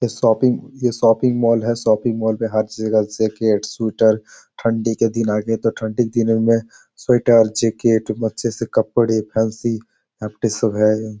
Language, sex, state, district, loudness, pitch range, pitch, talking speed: Hindi, male, Bihar, Jamui, -18 LUFS, 110-115 Hz, 115 Hz, 180 wpm